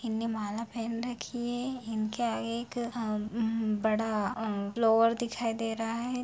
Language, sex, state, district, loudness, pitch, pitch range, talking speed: Hindi, female, Jharkhand, Sahebganj, -31 LUFS, 230 Hz, 220-235 Hz, 175 wpm